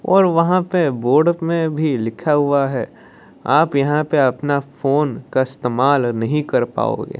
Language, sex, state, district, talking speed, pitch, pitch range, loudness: Hindi, female, Odisha, Malkangiri, 160 wpm, 145 Hz, 130-160 Hz, -18 LUFS